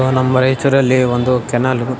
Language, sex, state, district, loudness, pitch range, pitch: Kannada, male, Karnataka, Raichur, -14 LUFS, 125-130 Hz, 130 Hz